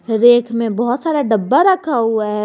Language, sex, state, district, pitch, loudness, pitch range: Hindi, female, Jharkhand, Garhwa, 235 Hz, -15 LUFS, 220-270 Hz